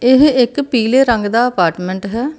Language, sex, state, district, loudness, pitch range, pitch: Punjabi, female, Karnataka, Bangalore, -14 LUFS, 205-260 Hz, 240 Hz